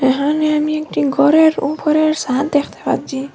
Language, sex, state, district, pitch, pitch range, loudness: Bengali, female, Assam, Hailakandi, 295 Hz, 280-310 Hz, -16 LUFS